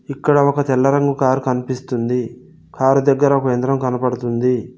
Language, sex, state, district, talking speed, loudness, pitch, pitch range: Telugu, male, Telangana, Mahabubabad, 140 wpm, -17 LUFS, 130 Hz, 125-140 Hz